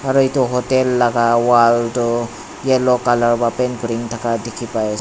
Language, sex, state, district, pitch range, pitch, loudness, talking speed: Nagamese, male, Nagaland, Dimapur, 115-125 Hz, 120 Hz, -17 LUFS, 180 wpm